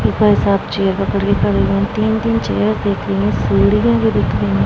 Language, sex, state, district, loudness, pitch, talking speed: Hindi, female, Bihar, Vaishali, -15 LUFS, 110 Hz, 230 wpm